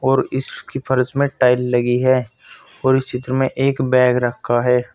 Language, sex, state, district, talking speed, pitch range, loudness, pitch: Hindi, male, Uttar Pradesh, Saharanpur, 180 wpm, 125-130 Hz, -18 LUFS, 130 Hz